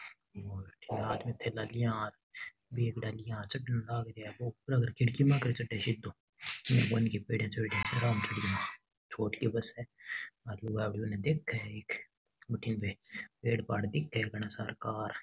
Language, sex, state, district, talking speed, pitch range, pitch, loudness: Rajasthani, male, Rajasthan, Nagaur, 140 wpm, 105-120 Hz, 115 Hz, -35 LUFS